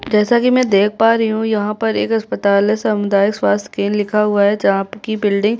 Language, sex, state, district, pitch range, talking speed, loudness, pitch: Hindi, female, Chhattisgarh, Jashpur, 200-220 Hz, 235 wpm, -16 LUFS, 210 Hz